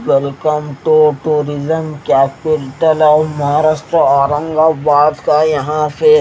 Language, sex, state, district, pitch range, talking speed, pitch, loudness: Hindi, male, Haryana, Jhajjar, 145-155 Hz, 95 wpm, 150 Hz, -13 LUFS